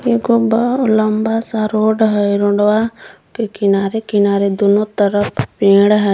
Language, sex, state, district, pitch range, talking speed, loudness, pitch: Magahi, female, Jharkhand, Palamu, 205-225 Hz, 135 wpm, -14 LUFS, 215 Hz